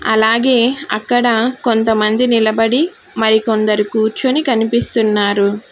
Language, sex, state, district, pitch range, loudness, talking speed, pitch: Telugu, female, Telangana, Hyderabad, 220-245 Hz, -14 LUFS, 75 wpm, 225 Hz